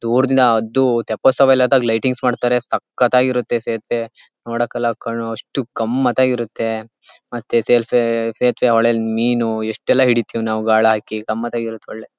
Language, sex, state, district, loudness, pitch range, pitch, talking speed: Kannada, male, Karnataka, Shimoga, -17 LUFS, 115-125 Hz, 115 Hz, 135 wpm